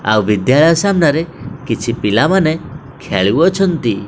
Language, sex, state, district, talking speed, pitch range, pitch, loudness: Odia, male, Odisha, Khordha, 90 wpm, 110-165 Hz, 145 Hz, -14 LUFS